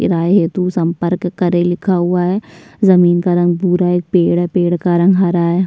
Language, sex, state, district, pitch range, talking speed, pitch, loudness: Hindi, female, Uttar Pradesh, Budaun, 175-180 Hz, 210 wpm, 175 Hz, -14 LUFS